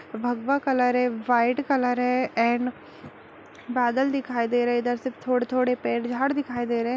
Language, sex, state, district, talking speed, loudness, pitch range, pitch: Hindi, female, Bihar, Kishanganj, 180 wpm, -25 LUFS, 240-255 Hz, 245 Hz